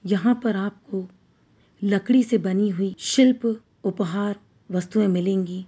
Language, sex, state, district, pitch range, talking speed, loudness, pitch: Hindi, female, Uttar Pradesh, Muzaffarnagar, 190-225 Hz, 115 wpm, -23 LUFS, 200 Hz